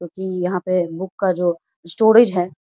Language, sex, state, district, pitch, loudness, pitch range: Hindi, female, Bihar, Samastipur, 180 Hz, -18 LUFS, 175-190 Hz